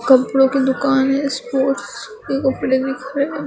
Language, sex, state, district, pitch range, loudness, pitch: Hindi, female, Maharashtra, Gondia, 265-280 Hz, -18 LUFS, 270 Hz